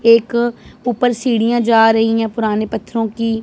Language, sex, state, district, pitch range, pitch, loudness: Hindi, female, Punjab, Pathankot, 225-235 Hz, 230 Hz, -16 LUFS